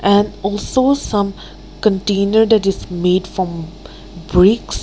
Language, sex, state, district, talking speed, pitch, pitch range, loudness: English, female, Nagaland, Kohima, 110 wpm, 200 Hz, 185-210 Hz, -16 LUFS